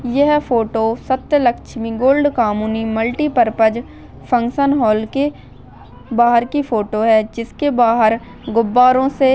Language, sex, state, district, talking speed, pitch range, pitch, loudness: Hindi, female, Maharashtra, Solapur, 110 wpm, 225-265 Hz, 240 Hz, -16 LUFS